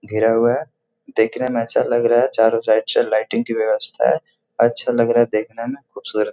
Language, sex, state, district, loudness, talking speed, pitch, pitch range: Hindi, male, Bihar, Jahanabad, -18 LUFS, 225 wpm, 115 Hz, 110-120 Hz